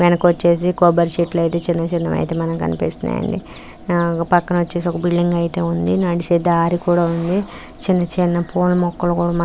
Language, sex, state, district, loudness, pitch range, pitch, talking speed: Telugu, female, Telangana, Nalgonda, -18 LUFS, 170-175 Hz, 175 Hz, 145 wpm